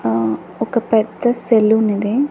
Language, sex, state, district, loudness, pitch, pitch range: Telugu, female, Andhra Pradesh, Annamaya, -17 LUFS, 220 Hz, 205-235 Hz